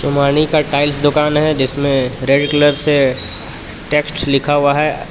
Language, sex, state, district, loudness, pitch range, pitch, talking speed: Hindi, male, Jharkhand, Palamu, -14 LUFS, 140-150 Hz, 145 Hz, 150 wpm